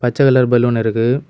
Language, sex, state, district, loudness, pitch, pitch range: Tamil, male, Tamil Nadu, Kanyakumari, -14 LUFS, 120 Hz, 120-130 Hz